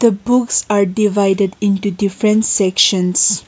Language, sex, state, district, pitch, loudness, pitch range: English, female, Nagaland, Kohima, 200 Hz, -14 LUFS, 195-215 Hz